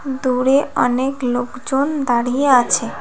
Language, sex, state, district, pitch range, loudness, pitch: Bengali, female, West Bengal, Cooch Behar, 245-275 Hz, -17 LUFS, 260 Hz